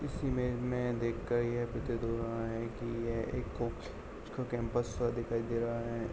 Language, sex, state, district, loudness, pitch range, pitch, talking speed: Hindi, male, Uttar Pradesh, Jalaun, -36 LUFS, 115-120 Hz, 115 Hz, 205 wpm